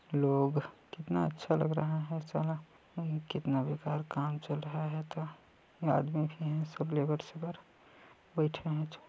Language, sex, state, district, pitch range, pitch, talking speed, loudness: Chhattisgarhi, male, Chhattisgarh, Balrampur, 150-160 Hz, 155 Hz, 150 wpm, -35 LUFS